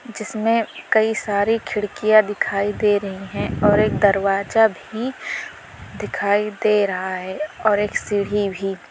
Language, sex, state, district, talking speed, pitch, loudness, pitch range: Hindi, female, Uttar Pradesh, Lalitpur, 135 wpm, 205 Hz, -20 LUFS, 200-220 Hz